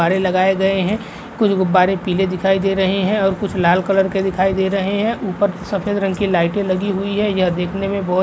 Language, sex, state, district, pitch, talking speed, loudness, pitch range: Hindi, male, Uttar Pradesh, Jalaun, 195 Hz, 240 wpm, -17 LUFS, 185-200 Hz